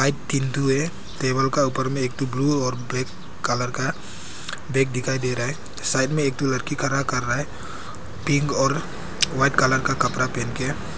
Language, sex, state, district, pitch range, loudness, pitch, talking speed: Hindi, male, Arunachal Pradesh, Papum Pare, 125-140 Hz, -23 LUFS, 130 Hz, 180 wpm